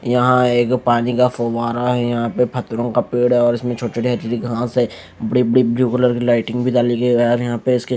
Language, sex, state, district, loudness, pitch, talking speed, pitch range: Hindi, male, Haryana, Charkhi Dadri, -17 LUFS, 120 Hz, 255 wpm, 120-125 Hz